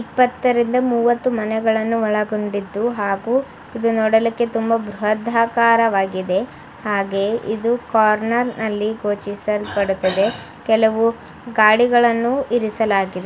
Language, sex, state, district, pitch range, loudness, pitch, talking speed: Kannada, female, Karnataka, Mysore, 210-235 Hz, -18 LUFS, 220 Hz, 75 wpm